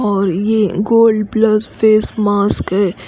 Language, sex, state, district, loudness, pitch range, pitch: Hindi, female, Odisha, Khordha, -14 LUFS, 200-220 Hz, 210 Hz